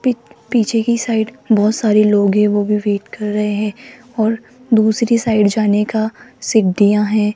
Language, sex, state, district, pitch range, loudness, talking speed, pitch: Hindi, female, Rajasthan, Jaipur, 210-230 Hz, -15 LUFS, 170 wpm, 215 Hz